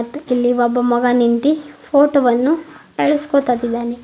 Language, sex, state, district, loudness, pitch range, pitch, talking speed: Kannada, female, Karnataka, Bidar, -16 LUFS, 240-290 Hz, 245 Hz, 105 wpm